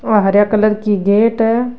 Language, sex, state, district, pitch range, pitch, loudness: Rajasthani, female, Rajasthan, Nagaur, 205-225 Hz, 215 Hz, -13 LUFS